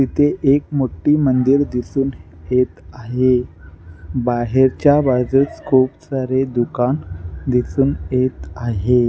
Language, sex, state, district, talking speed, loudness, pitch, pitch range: Marathi, male, Maharashtra, Nagpur, 85 wpm, -18 LUFS, 125 Hz, 120-135 Hz